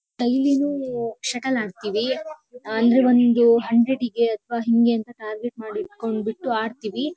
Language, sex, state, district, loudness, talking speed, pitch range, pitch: Kannada, female, Karnataka, Shimoga, -22 LUFS, 110 wpm, 225-260 Hz, 235 Hz